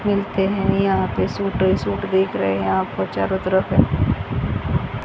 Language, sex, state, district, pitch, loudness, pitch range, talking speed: Hindi, female, Haryana, Jhajjar, 190 Hz, -20 LUFS, 185-195 Hz, 155 wpm